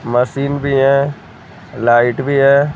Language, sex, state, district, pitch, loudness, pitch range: Hindi, male, Jharkhand, Sahebganj, 140 Hz, -14 LUFS, 125-140 Hz